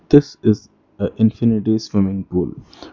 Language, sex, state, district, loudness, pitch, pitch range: English, male, Karnataka, Bangalore, -19 LUFS, 110 Hz, 100-115 Hz